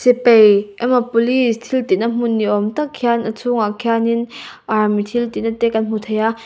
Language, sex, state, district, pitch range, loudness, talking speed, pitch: Mizo, female, Mizoram, Aizawl, 215-240 Hz, -16 LUFS, 230 wpm, 230 Hz